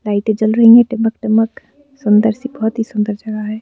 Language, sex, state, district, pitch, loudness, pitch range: Hindi, female, Madhya Pradesh, Bhopal, 220 Hz, -14 LUFS, 215-230 Hz